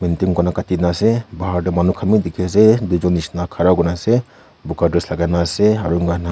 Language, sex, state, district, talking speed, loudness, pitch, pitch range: Nagamese, female, Nagaland, Kohima, 180 wpm, -17 LUFS, 90 Hz, 85-100 Hz